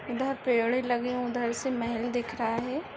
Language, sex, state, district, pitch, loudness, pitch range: Hindi, female, Maharashtra, Aurangabad, 245 Hz, -29 LUFS, 235-255 Hz